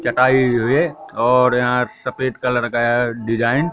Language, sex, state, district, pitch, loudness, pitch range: Hindi, male, Madhya Pradesh, Katni, 125 Hz, -18 LUFS, 120-130 Hz